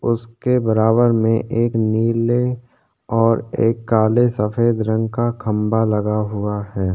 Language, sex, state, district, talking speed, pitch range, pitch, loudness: Hindi, male, Chhattisgarh, Korba, 130 wpm, 110-120 Hz, 115 Hz, -18 LUFS